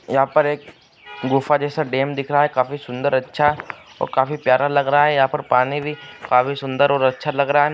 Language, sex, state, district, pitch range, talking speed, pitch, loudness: Hindi, male, Andhra Pradesh, Anantapur, 135-150 Hz, 225 wpm, 140 Hz, -19 LUFS